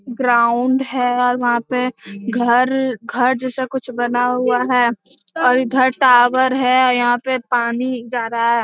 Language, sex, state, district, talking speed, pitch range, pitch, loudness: Hindi, female, Bihar, Jamui, 165 wpm, 240-255 Hz, 250 Hz, -17 LUFS